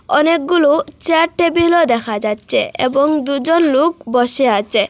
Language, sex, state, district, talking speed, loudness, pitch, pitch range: Bengali, female, Assam, Hailakandi, 120 wpm, -14 LUFS, 290 Hz, 245-330 Hz